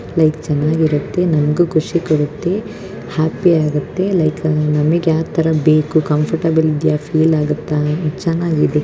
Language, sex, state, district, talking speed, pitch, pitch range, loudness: Kannada, male, Karnataka, Dharwad, 110 wpm, 155 Hz, 150-165 Hz, -16 LUFS